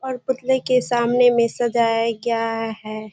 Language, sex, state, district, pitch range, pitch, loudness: Hindi, female, Bihar, Kishanganj, 225-250 Hz, 235 Hz, -20 LUFS